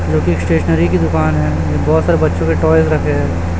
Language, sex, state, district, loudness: Hindi, male, Chhattisgarh, Raipur, -14 LUFS